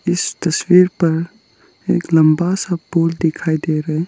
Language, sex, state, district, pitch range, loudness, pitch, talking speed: Hindi, male, Arunachal Pradesh, Lower Dibang Valley, 160-180 Hz, -16 LUFS, 170 Hz, 160 wpm